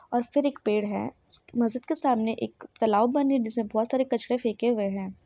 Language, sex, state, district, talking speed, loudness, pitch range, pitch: Hindi, female, Jharkhand, Sahebganj, 230 wpm, -27 LUFS, 220-260 Hz, 235 Hz